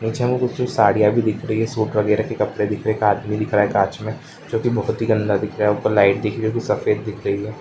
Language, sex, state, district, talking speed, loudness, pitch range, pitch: Hindi, male, Uttar Pradesh, Varanasi, 300 wpm, -20 LUFS, 105-115 Hz, 110 Hz